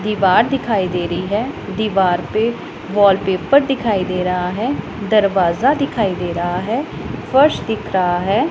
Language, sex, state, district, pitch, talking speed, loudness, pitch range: Hindi, female, Punjab, Pathankot, 200 Hz, 150 wpm, -17 LUFS, 180-230 Hz